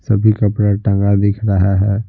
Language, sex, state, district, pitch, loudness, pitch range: Hindi, male, Bihar, Patna, 100 Hz, -15 LUFS, 100-105 Hz